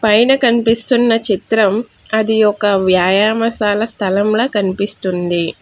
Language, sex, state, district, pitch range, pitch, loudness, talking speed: Telugu, female, Telangana, Hyderabad, 195-225 Hz, 210 Hz, -14 LUFS, 85 wpm